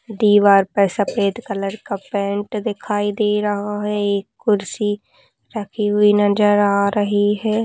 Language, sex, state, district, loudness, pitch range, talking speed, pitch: Hindi, female, Uttar Pradesh, Budaun, -18 LUFS, 200-210 Hz, 135 wpm, 205 Hz